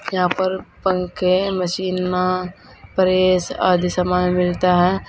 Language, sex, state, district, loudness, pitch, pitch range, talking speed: Hindi, female, Uttar Pradesh, Saharanpur, -19 LUFS, 180 Hz, 180-185 Hz, 130 wpm